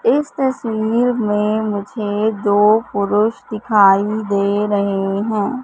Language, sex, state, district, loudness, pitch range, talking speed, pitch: Hindi, female, Madhya Pradesh, Katni, -17 LUFS, 205-225 Hz, 105 wpm, 210 Hz